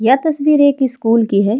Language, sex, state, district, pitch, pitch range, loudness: Hindi, female, Uttar Pradesh, Jalaun, 260 Hz, 225-285 Hz, -14 LUFS